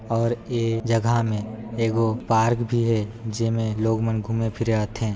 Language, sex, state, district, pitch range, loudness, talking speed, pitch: Chhattisgarhi, male, Chhattisgarh, Sarguja, 110-115 Hz, -23 LUFS, 165 wpm, 115 Hz